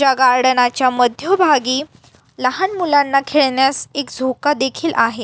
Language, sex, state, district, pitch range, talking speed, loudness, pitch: Marathi, female, Maharashtra, Aurangabad, 255-290 Hz, 125 wpm, -16 LUFS, 270 Hz